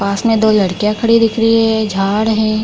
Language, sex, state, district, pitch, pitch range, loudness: Hindi, female, Bihar, Kishanganj, 220 Hz, 210-225 Hz, -13 LUFS